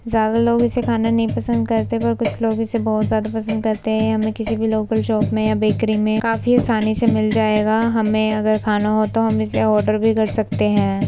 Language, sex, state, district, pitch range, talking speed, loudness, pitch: Hindi, female, Uttar Pradesh, Budaun, 215-225 Hz, 225 wpm, -18 LUFS, 220 Hz